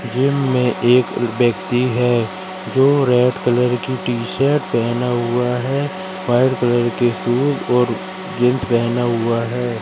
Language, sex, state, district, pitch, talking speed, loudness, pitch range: Hindi, female, Madhya Pradesh, Katni, 125 Hz, 140 wpm, -17 LUFS, 120-130 Hz